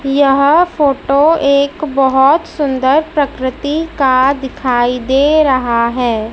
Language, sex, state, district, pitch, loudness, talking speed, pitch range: Hindi, female, Madhya Pradesh, Dhar, 275 Hz, -12 LUFS, 105 wpm, 260-295 Hz